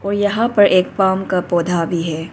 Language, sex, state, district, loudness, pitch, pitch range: Hindi, female, Arunachal Pradesh, Papum Pare, -16 LUFS, 185 Hz, 170-200 Hz